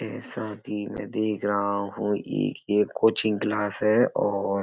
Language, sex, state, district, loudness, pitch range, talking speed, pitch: Hindi, male, Uttar Pradesh, Etah, -26 LUFS, 100-110 Hz, 170 wpm, 105 Hz